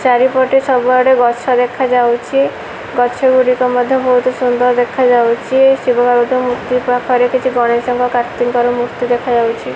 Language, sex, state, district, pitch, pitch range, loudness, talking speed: Odia, female, Odisha, Malkangiri, 245 Hz, 245-255 Hz, -13 LUFS, 115 wpm